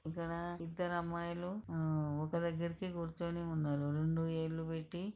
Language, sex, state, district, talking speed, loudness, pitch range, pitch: Telugu, female, Andhra Pradesh, Krishna, 130 wpm, -39 LUFS, 160-170 Hz, 170 Hz